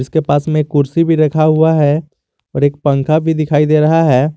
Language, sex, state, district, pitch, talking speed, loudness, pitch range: Hindi, male, Jharkhand, Garhwa, 155 Hz, 235 wpm, -13 LUFS, 145-160 Hz